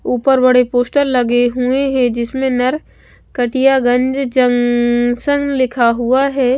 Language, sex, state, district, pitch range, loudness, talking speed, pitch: Hindi, female, Bihar, West Champaran, 245-270 Hz, -14 LUFS, 120 wpm, 255 Hz